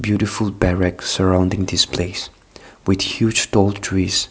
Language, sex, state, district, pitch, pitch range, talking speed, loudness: English, male, Nagaland, Kohima, 95 Hz, 90-100 Hz, 125 wpm, -18 LUFS